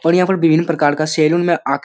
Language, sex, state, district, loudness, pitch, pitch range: Hindi, male, Bihar, Jamui, -15 LUFS, 165 Hz, 155-170 Hz